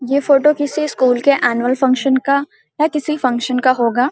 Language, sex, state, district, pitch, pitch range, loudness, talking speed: Hindi, female, Bihar, Samastipur, 270 Hz, 255-290 Hz, -15 LUFS, 190 wpm